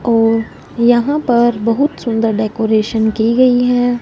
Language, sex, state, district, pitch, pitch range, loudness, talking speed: Hindi, female, Punjab, Fazilka, 235 Hz, 225-245 Hz, -14 LUFS, 135 wpm